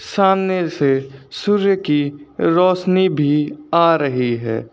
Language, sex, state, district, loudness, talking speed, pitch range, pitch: Hindi, male, Uttar Pradesh, Lucknow, -17 LUFS, 115 wpm, 140-185 Hz, 150 Hz